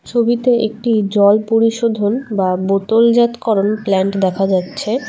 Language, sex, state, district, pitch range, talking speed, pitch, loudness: Bengali, female, West Bengal, Alipurduar, 195-235 Hz, 120 wpm, 215 Hz, -15 LUFS